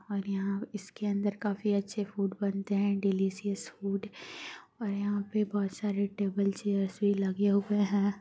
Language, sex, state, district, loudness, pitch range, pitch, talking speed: Hindi, female, Bihar, Gaya, -32 LUFS, 200-205 Hz, 200 Hz, 160 wpm